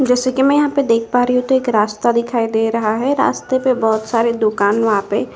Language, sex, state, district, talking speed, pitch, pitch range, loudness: Hindi, female, Chhattisgarh, Korba, 255 wpm, 235 Hz, 220-255 Hz, -16 LUFS